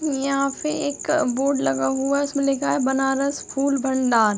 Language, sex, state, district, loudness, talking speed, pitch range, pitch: Hindi, female, Uttar Pradesh, Deoria, -22 LUFS, 165 wpm, 265-280 Hz, 275 Hz